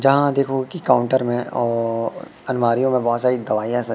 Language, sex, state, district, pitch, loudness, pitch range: Hindi, male, Madhya Pradesh, Katni, 125 Hz, -20 LUFS, 115-130 Hz